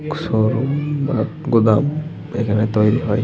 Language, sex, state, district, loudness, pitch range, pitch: Bengali, male, Jharkhand, Jamtara, -18 LUFS, 110-150 Hz, 120 Hz